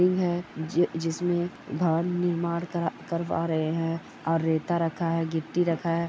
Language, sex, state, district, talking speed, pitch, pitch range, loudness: Hindi, male, Bihar, Darbhanga, 155 wpm, 170 Hz, 165-175 Hz, -28 LUFS